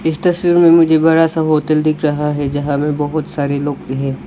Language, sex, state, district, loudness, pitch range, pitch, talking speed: Hindi, male, Arunachal Pradesh, Lower Dibang Valley, -14 LUFS, 145-160 Hz, 155 Hz, 240 wpm